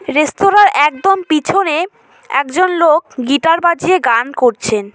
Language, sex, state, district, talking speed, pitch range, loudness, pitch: Bengali, female, West Bengal, Cooch Behar, 110 wpm, 275-370 Hz, -13 LUFS, 310 Hz